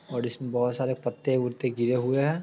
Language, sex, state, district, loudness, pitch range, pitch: Hindi, male, Bihar, Sitamarhi, -27 LUFS, 120-130 Hz, 125 Hz